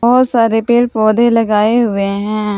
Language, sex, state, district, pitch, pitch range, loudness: Hindi, female, Jharkhand, Palamu, 225 Hz, 210-235 Hz, -12 LUFS